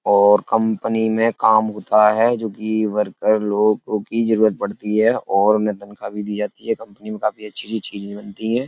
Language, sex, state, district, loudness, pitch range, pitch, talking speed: Hindi, male, Uttar Pradesh, Etah, -19 LUFS, 105-110 Hz, 105 Hz, 195 wpm